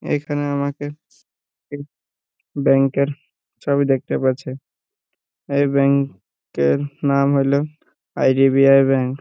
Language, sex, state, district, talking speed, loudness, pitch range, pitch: Bengali, male, West Bengal, Purulia, 110 wpm, -18 LUFS, 135-145 Hz, 140 Hz